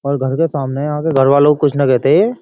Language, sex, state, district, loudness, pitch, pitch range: Hindi, male, Uttar Pradesh, Jyotiba Phule Nagar, -14 LUFS, 140 Hz, 135-150 Hz